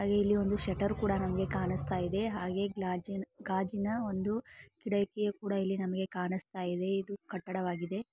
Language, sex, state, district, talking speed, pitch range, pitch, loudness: Kannada, female, Karnataka, Belgaum, 135 wpm, 185-205 Hz, 195 Hz, -34 LUFS